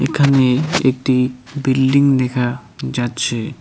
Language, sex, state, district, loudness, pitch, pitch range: Bengali, male, West Bengal, Cooch Behar, -16 LUFS, 130 Hz, 125-135 Hz